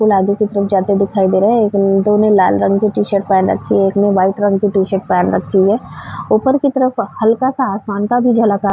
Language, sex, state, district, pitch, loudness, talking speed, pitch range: Hindi, female, Uttar Pradesh, Varanasi, 205 Hz, -14 LUFS, 260 wpm, 195-215 Hz